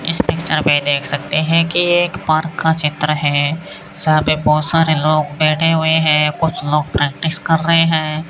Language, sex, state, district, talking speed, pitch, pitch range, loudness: Hindi, male, Rajasthan, Bikaner, 190 wpm, 155 Hz, 150-165 Hz, -15 LUFS